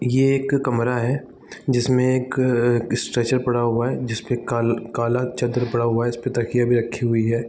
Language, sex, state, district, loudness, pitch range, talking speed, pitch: Hindi, male, Bihar, East Champaran, -21 LUFS, 120-125 Hz, 210 wpm, 120 Hz